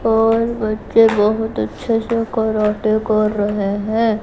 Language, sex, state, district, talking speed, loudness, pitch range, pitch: Hindi, female, Gujarat, Gandhinagar, 130 wpm, -17 LUFS, 210-225 Hz, 220 Hz